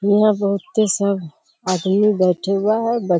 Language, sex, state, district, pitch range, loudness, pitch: Hindi, female, Bihar, Kishanganj, 185-215 Hz, -18 LUFS, 200 Hz